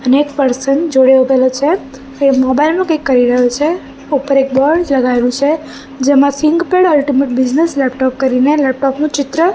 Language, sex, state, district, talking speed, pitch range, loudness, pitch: Gujarati, female, Gujarat, Gandhinagar, 170 wpm, 260-300 Hz, -12 LUFS, 275 Hz